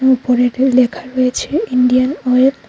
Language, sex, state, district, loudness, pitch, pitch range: Bengali, female, Tripura, Unakoti, -14 LUFS, 255 Hz, 250-260 Hz